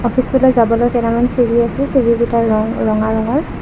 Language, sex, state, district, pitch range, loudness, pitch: Assamese, female, Assam, Kamrup Metropolitan, 230-250 Hz, -14 LUFS, 235 Hz